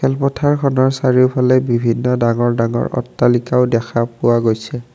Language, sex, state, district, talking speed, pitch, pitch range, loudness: Assamese, male, Assam, Kamrup Metropolitan, 120 wpm, 125 Hz, 120-130 Hz, -16 LUFS